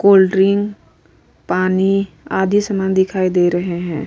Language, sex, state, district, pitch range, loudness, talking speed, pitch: Hindi, female, Uttar Pradesh, Hamirpur, 180-195 Hz, -16 LUFS, 120 wpm, 190 Hz